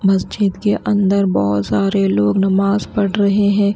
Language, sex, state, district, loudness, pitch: Hindi, female, Bihar, Katihar, -16 LUFS, 195 Hz